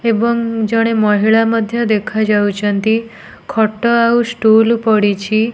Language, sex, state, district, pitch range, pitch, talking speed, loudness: Odia, female, Odisha, Nuapada, 215-230 Hz, 225 Hz, 95 wpm, -14 LUFS